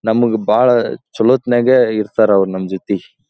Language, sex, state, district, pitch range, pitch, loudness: Kannada, male, Karnataka, Dharwad, 100-120 Hz, 110 Hz, -15 LUFS